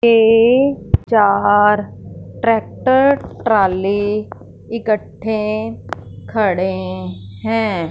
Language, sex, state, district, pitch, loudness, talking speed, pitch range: Hindi, female, Punjab, Fazilka, 210 Hz, -16 LUFS, 55 wpm, 185-225 Hz